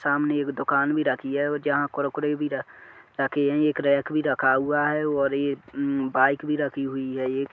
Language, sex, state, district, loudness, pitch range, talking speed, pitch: Hindi, male, Chhattisgarh, Sarguja, -24 LUFS, 140-150 Hz, 215 wpm, 145 Hz